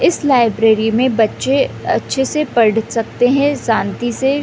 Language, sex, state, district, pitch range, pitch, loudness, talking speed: Hindi, female, Chhattisgarh, Raigarh, 225-275 Hz, 245 Hz, -15 LUFS, 150 wpm